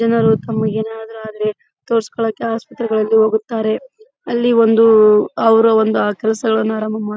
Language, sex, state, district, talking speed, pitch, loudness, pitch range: Kannada, female, Karnataka, Bellary, 115 wpm, 220 Hz, -15 LUFS, 220-230 Hz